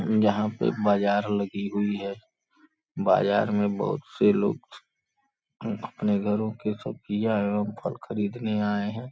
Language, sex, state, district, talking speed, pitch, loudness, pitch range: Hindi, male, Uttar Pradesh, Gorakhpur, 130 wpm, 105 Hz, -26 LUFS, 100-110 Hz